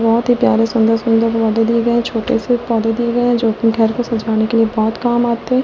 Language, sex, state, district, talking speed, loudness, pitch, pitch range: Hindi, female, Delhi, New Delhi, 275 wpm, -15 LUFS, 230 Hz, 225-235 Hz